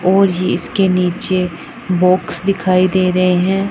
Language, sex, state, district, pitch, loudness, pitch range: Hindi, female, Punjab, Pathankot, 185 Hz, -15 LUFS, 180-195 Hz